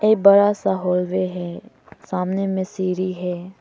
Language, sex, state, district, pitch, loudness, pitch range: Hindi, female, Arunachal Pradesh, Papum Pare, 185 Hz, -20 LUFS, 180-200 Hz